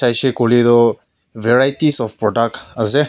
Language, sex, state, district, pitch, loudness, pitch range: Nagamese, male, Nagaland, Kohima, 120 Hz, -15 LUFS, 115-130 Hz